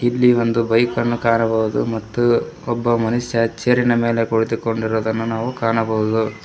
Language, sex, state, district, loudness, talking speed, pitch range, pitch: Kannada, male, Karnataka, Koppal, -18 LUFS, 130 wpm, 110-120 Hz, 115 Hz